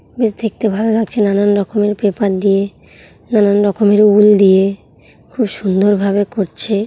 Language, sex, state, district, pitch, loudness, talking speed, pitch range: Bengali, female, West Bengal, Kolkata, 205 Hz, -13 LUFS, 140 wpm, 200-215 Hz